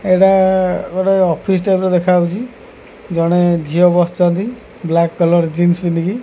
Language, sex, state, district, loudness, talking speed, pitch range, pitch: Odia, male, Odisha, Khordha, -14 LUFS, 135 wpm, 175-190 Hz, 180 Hz